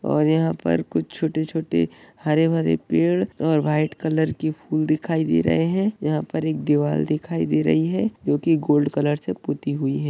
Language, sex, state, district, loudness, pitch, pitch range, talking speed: Hindi, male, Uttar Pradesh, Deoria, -22 LUFS, 155 Hz, 140-160 Hz, 185 wpm